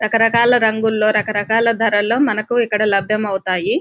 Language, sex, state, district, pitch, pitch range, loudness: Telugu, female, Telangana, Nalgonda, 215 Hz, 210-230 Hz, -16 LUFS